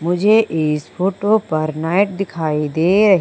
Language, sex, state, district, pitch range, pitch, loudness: Hindi, female, Madhya Pradesh, Umaria, 155-200 Hz, 175 Hz, -17 LUFS